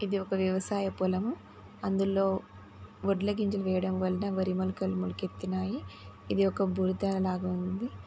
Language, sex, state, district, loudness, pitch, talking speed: Telugu, female, Telangana, Nalgonda, -31 LUFS, 185 Hz, 120 wpm